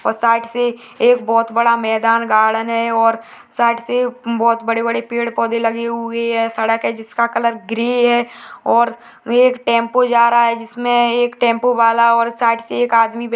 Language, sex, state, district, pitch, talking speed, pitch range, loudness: Hindi, female, Uttarakhand, Tehri Garhwal, 235 Hz, 190 wpm, 230-235 Hz, -16 LUFS